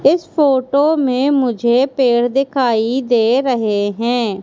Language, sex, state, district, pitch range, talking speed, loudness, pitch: Hindi, female, Madhya Pradesh, Katni, 235-275 Hz, 120 wpm, -15 LUFS, 255 Hz